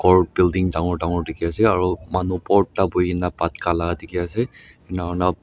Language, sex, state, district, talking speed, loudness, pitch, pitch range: Nagamese, male, Nagaland, Dimapur, 190 wpm, -21 LUFS, 90 Hz, 85-90 Hz